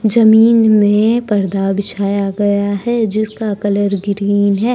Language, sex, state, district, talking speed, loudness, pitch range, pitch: Hindi, female, Jharkhand, Deoghar, 125 wpm, -14 LUFS, 200-220 Hz, 205 Hz